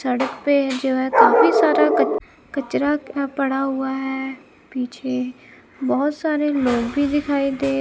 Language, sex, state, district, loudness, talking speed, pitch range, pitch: Hindi, female, Punjab, Kapurthala, -20 LUFS, 145 wpm, 260-285 Hz, 270 Hz